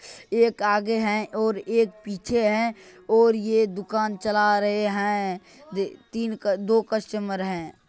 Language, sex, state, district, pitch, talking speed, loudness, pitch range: Magahi, male, Bihar, Gaya, 210 Hz, 145 wpm, -24 LUFS, 205-220 Hz